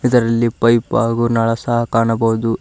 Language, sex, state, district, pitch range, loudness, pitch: Kannada, male, Karnataka, Koppal, 115-120 Hz, -16 LUFS, 115 Hz